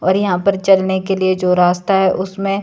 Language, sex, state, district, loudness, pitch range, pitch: Hindi, female, Himachal Pradesh, Shimla, -15 LUFS, 185-195 Hz, 190 Hz